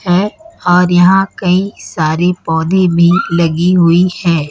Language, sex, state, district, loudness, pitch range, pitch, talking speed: Hindi, female, Chhattisgarh, Raipur, -12 LUFS, 170-185 Hz, 180 Hz, 135 wpm